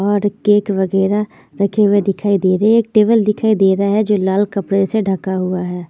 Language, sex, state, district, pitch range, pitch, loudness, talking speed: Hindi, female, Chandigarh, Chandigarh, 195-210 Hz, 200 Hz, -15 LUFS, 225 wpm